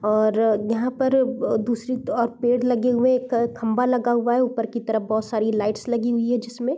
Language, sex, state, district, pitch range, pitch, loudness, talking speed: Hindi, female, Bihar, East Champaran, 225-250 Hz, 235 Hz, -22 LUFS, 210 wpm